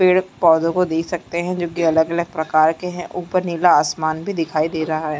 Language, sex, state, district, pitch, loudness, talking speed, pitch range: Chhattisgarhi, female, Chhattisgarh, Jashpur, 165 Hz, -19 LUFS, 220 wpm, 160-180 Hz